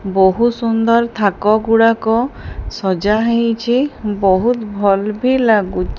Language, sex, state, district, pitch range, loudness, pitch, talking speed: Odia, female, Odisha, Sambalpur, 200-235 Hz, -15 LUFS, 220 Hz, 110 wpm